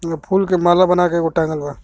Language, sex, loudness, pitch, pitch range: Bhojpuri, male, -16 LUFS, 170 Hz, 160-180 Hz